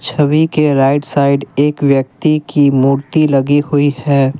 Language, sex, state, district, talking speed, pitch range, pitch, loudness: Hindi, male, Assam, Kamrup Metropolitan, 150 wpm, 140-150 Hz, 145 Hz, -13 LUFS